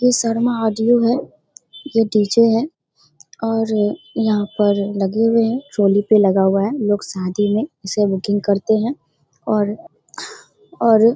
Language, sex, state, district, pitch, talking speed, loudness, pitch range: Hindi, female, Bihar, Darbhanga, 220 Hz, 150 wpm, -18 LUFS, 205-230 Hz